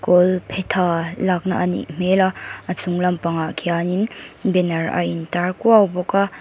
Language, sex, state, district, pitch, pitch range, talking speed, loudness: Mizo, female, Mizoram, Aizawl, 180 Hz, 170-190 Hz, 150 wpm, -20 LUFS